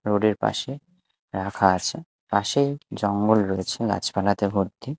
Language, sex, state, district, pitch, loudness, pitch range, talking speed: Bengali, male, Odisha, Malkangiri, 105 Hz, -24 LUFS, 100-140 Hz, 120 wpm